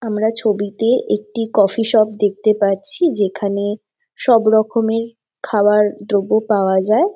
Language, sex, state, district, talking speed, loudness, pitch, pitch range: Bengali, female, West Bengal, Jhargram, 115 wpm, -16 LUFS, 215 Hz, 205-230 Hz